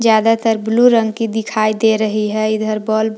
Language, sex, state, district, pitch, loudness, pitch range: Hindi, female, Jharkhand, Palamu, 220 Hz, -15 LUFS, 215-225 Hz